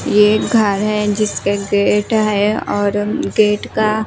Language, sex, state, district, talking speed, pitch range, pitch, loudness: Hindi, female, Himachal Pradesh, Shimla, 130 wpm, 205-215 Hz, 210 Hz, -15 LUFS